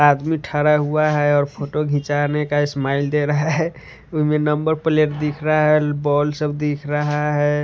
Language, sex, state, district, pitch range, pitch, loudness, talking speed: Hindi, male, Maharashtra, Washim, 145-150 Hz, 150 Hz, -19 LUFS, 180 wpm